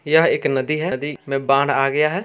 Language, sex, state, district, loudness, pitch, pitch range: Hindi, male, Bihar, Darbhanga, -19 LUFS, 145 Hz, 135-155 Hz